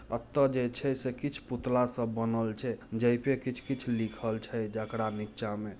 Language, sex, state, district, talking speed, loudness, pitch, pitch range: Hindi, male, Bihar, Muzaffarpur, 155 wpm, -31 LUFS, 120 Hz, 110-130 Hz